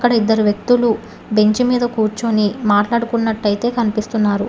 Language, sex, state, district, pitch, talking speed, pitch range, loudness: Telugu, female, Telangana, Hyderabad, 220 Hz, 105 wpm, 210-235 Hz, -16 LUFS